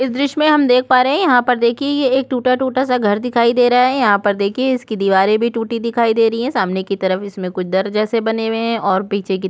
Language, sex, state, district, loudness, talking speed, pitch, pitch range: Hindi, female, Chhattisgarh, Korba, -16 LUFS, 265 wpm, 230 Hz, 200-255 Hz